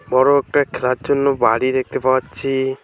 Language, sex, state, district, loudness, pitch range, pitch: Bengali, male, West Bengal, Alipurduar, -17 LUFS, 130-140 Hz, 130 Hz